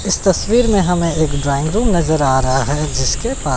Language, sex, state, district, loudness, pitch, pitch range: Hindi, male, Chandigarh, Chandigarh, -16 LUFS, 155 Hz, 140-180 Hz